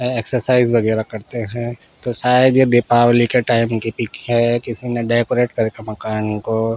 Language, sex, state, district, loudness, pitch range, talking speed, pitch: Hindi, male, Bihar, Patna, -17 LUFS, 115-125 Hz, 170 wpm, 120 Hz